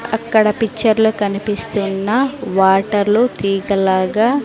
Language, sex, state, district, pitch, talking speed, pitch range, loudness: Telugu, female, Andhra Pradesh, Sri Satya Sai, 210 Hz, 65 wpm, 195-225 Hz, -16 LUFS